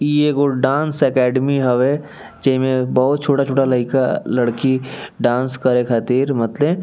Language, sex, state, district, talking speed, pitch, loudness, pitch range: Bhojpuri, male, Bihar, East Champaran, 140 wpm, 130 Hz, -17 LUFS, 125-140 Hz